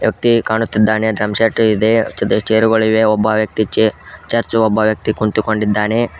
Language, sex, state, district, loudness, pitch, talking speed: Kannada, male, Karnataka, Koppal, -15 LUFS, 110 Hz, 125 wpm